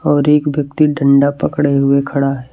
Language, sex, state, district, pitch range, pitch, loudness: Hindi, male, Chhattisgarh, Raipur, 140-145 Hz, 140 Hz, -14 LUFS